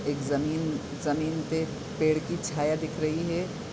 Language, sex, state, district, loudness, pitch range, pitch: Hindi, male, Bihar, Muzaffarpur, -29 LUFS, 150-160 Hz, 155 Hz